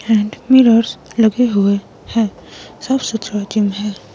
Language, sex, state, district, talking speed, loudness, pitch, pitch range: Hindi, female, Himachal Pradesh, Shimla, 130 wpm, -15 LUFS, 220 Hz, 205-230 Hz